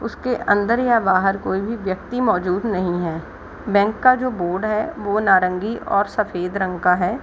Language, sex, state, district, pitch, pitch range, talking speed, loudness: Hindi, female, Bihar, Gaya, 200 Hz, 185-225 Hz, 200 wpm, -20 LUFS